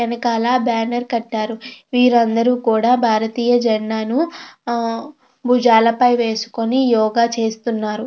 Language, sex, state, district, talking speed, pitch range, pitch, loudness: Telugu, female, Andhra Pradesh, Krishna, 95 wpm, 225-245 Hz, 235 Hz, -17 LUFS